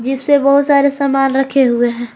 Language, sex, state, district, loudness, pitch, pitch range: Hindi, female, Jharkhand, Garhwa, -13 LUFS, 270 Hz, 260-280 Hz